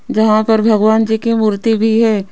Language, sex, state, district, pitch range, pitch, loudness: Hindi, female, Rajasthan, Jaipur, 215-225 Hz, 220 Hz, -13 LUFS